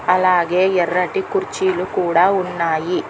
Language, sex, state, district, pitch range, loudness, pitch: Telugu, female, Telangana, Hyderabad, 175-190 Hz, -18 LUFS, 180 Hz